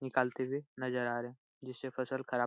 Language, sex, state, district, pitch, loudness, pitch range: Hindi, male, Bihar, Supaul, 130 Hz, -38 LUFS, 125-130 Hz